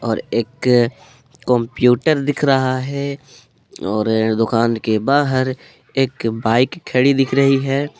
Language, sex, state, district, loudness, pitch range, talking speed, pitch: Hindi, male, Jharkhand, Palamu, -17 LUFS, 115-140 Hz, 120 wpm, 130 Hz